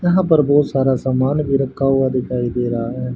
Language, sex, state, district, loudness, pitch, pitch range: Hindi, male, Haryana, Rohtak, -17 LUFS, 135 Hz, 125-140 Hz